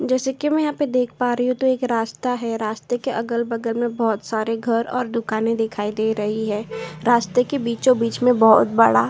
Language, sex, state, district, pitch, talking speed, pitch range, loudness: Hindi, female, Uttar Pradesh, Jyotiba Phule Nagar, 235 Hz, 215 wpm, 220-250 Hz, -20 LUFS